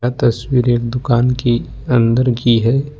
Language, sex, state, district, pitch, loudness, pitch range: Hindi, male, Jharkhand, Ranchi, 120 Hz, -15 LUFS, 120-125 Hz